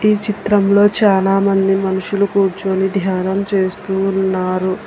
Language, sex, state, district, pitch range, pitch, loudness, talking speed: Telugu, female, Telangana, Hyderabad, 190-200 Hz, 195 Hz, -15 LUFS, 85 wpm